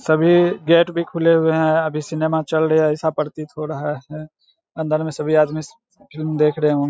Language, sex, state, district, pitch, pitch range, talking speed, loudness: Hindi, male, Bihar, Saharsa, 155 Hz, 155-165 Hz, 215 wpm, -19 LUFS